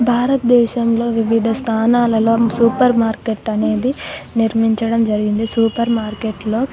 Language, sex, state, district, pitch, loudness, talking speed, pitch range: Telugu, female, Telangana, Nalgonda, 230 Hz, -16 LUFS, 90 wpm, 225-235 Hz